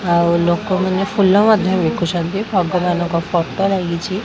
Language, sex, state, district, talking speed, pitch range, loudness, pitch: Odia, female, Odisha, Khordha, 115 wpm, 170-195 Hz, -16 LUFS, 180 Hz